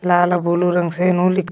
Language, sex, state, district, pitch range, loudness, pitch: Magahi, female, Jharkhand, Palamu, 175-180 Hz, -17 LUFS, 175 Hz